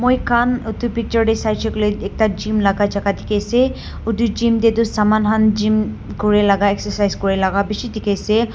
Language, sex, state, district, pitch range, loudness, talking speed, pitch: Nagamese, female, Nagaland, Dimapur, 205-230 Hz, -17 LUFS, 195 wpm, 215 Hz